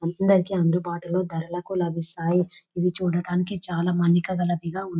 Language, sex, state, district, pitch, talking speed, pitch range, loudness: Telugu, female, Telangana, Nalgonda, 175 Hz, 130 wpm, 170-185 Hz, -24 LUFS